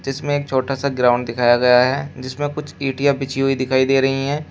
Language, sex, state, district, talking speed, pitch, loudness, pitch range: Hindi, male, Uttar Pradesh, Shamli, 225 wpm, 135 Hz, -18 LUFS, 130-140 Hz